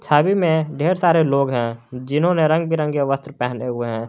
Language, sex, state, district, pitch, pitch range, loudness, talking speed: Hindi, male, Jharkhand, Garhwa, 145 Hz, 125-160 Hz, -19 LUFS, 190 wpm